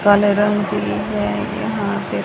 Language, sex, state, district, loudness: Hindi, male, Haryana, Rohtak, -19 LUFS